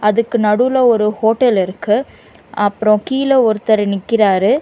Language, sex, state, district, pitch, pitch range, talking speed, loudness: Tamil, female, Karnataka, Bangalore, 220 Hz, 210-245 Hz, 115 wpm, -14 LUFS